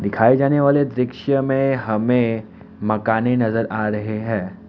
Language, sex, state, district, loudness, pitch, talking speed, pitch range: Hindi, male, Assam, Kamrup Metropolitan, -19 LUFS, 120 Hz, 140 wpm, 110-135 Hz